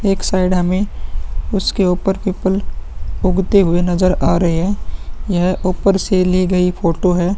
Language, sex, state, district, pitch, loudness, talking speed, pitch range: Hindi, male, Uttar Pradesh, Muzaffarnagar, 185 Hz, -16 LUFS, 155 wpm, 180-195 Hz